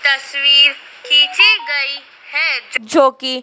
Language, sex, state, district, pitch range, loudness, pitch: Hindi, female, Madhya Pradesh, Dhar, 270-285 Hz, -12 LUFS, 280 Hz